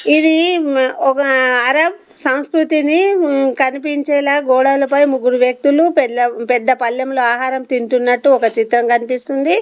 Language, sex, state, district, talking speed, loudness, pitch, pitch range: Telugu, female, Telangana, Komaram Bheem, 110 wpm, -14 LUFS, 270 Hz, 250-295 Hz